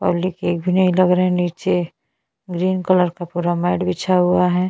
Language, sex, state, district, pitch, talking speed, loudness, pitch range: Hindi, female, Chhattisgarh, Bastar, 180 Hz, 90 wpm, -18 LUFS, 175-185 Hz